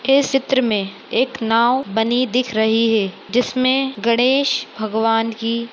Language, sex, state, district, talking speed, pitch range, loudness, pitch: Hindi, female, Maharashtra, Nagpur, 135 wpm, 225-255 Hz, -18 LUFS, 235 Hz